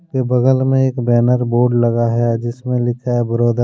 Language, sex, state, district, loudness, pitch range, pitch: Hindi, male, Jharkhand, Deoghar, -16 LUFS, 120-125 Hz, 120 Hz